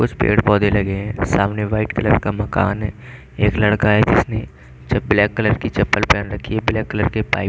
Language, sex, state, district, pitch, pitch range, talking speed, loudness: Hindi, male, Chandigarh, Chandigarh, 105 Hz, 100-110 Hz, 215 wpm, -18 LUFS